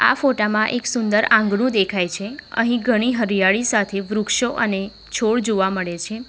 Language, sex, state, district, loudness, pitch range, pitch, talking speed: Gujarati, female, Gujarat, Valsad, -19 LUFS, 200-240 Hz, 215 Hz, 170 wpm